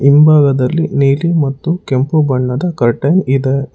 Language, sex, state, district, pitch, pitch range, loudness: Kannada, male, Karnataka, Bangalore, 140 Hz, 135-160 Hz, -13 LUFS